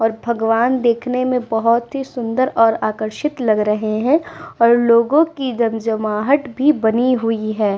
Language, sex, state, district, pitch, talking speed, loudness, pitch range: Hindi, female, Uttar Pradesh, Muzaffarnagar, 235 Hz, 155 wpm, -17 LUFS, 225-255 Hz